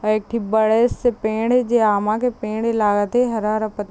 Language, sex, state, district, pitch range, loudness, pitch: Chhattisgarhi, female, Chhattisgarh, Raigarh, 215-235 Hz, -19 LUFS, 220 Hz